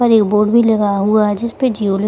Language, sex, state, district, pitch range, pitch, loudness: Hindi, female, Bihar, Gaya, 205-230 Hz, 215 Hz, -14 LUFS